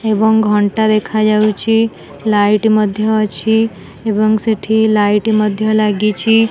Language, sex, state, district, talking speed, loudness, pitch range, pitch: Odia, female, Odisha, Nuapada, 100 wpm, -14 LUFS, 210-220 Hz, 215 Hz